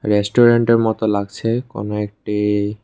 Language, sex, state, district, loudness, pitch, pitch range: Bengali, male, Tripura, West Tripura, -18 LUFS, 105 Hz, 105-115 Hz